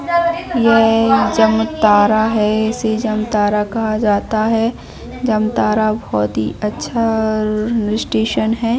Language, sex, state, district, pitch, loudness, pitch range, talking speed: Hindi, female, Jharkhand, Jamtara, 220 Hz, -16 LUFS, 215-225 Hz, 95 wpm